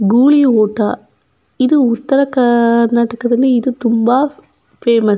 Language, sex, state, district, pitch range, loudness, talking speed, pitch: Kannada, female, Karnataka, Dakshina Kannada, 230-260 Hz, -13 LUFS, 105 wpm, 240 Hz